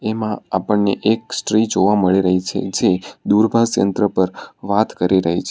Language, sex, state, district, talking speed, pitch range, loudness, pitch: Gujarati, male, Gujarat, Valsad, 175 wpm, 95-110 Hz, -17 LUFS, 100 Hz